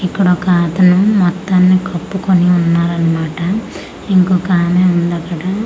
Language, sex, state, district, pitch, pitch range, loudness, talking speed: Telugu, female, Andhra Pradesh, Manyam, 180 Hz, 170-185 Hz, -13 LUFS, 85 wpm